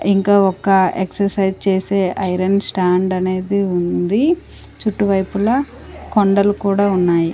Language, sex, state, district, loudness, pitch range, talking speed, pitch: Telugu, female, Andhra Pradesh, Sri Satya Sai, -17 LUFS, 185-200 Hz, 100 wpm, 195 Hz